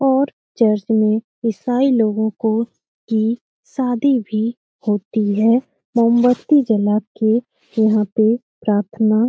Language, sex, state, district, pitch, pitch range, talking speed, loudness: Hindi, female, Bihar, Lakhisarai, 225 Hz, 215-240 Hz, 110 wpm, -18 LUFS